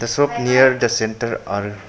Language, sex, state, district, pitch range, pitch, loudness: English, male, Arunachal Pradesh, Papum Pare, 110-130 Hz, 115 Hz, -18 LUFS